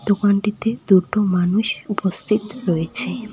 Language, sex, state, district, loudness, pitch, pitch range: Bengali, female, West Bengal, Cooch Behar, -18 LUFS, 205 Hz, 190-215 Hz